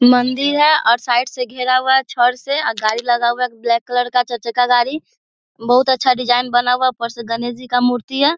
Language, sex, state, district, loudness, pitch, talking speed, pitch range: Hindi, female, Bihar, Muzaffarpur, -16 LUFS, 245 Hz, 245 wpm, 240-255 Hz